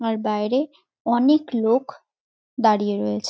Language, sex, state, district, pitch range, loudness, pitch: Bengali, female, West Bengal, North 24 Parganas, 210-265 Hz, -21 LUFS, 230 Hz